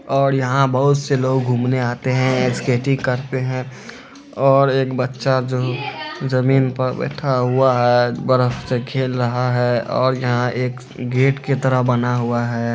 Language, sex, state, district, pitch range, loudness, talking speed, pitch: Hindi, male, Bihar, Araria, 125-135 Hz, -18 LUFS, 160 wpm, 130 Hz